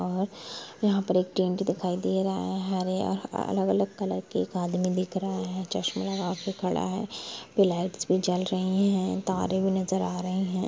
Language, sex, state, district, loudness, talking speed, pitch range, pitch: Hindi, female, Bihar, Sitamarhi, -28 LUFS, 210 wpm, 180-190 Hz, 185 Hz